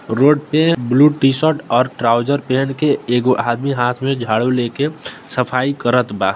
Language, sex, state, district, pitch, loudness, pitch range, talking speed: Maithili, male, Bihar, Samastipur, 130 Hz, -16 LUFS, 120-145 Hz, 160 wpm